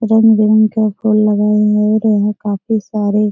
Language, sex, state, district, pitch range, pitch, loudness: Hindi, female, Bihar, Jahanabad, 210-220 Hz, 215 Hz, -13 LUFS